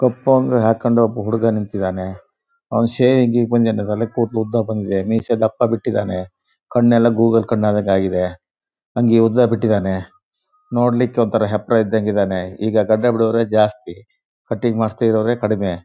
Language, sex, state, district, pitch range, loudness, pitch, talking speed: Kannada, male, Karnataka, Shimoga, 105-120 Hz, -17 LUFS, 115 Hz, 140 wpm